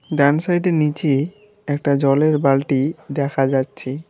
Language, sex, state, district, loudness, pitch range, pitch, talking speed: Bengali, male, West Bengal, Alipurduar, -19 LUFS, 140-160 Hz, 145 Hz, 130 wpm